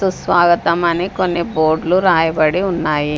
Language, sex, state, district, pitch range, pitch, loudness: Telugu, female, Andhra Pradesh, Sri Satya Sai, 160-185 Hz, 170 Hz, -15 LUFS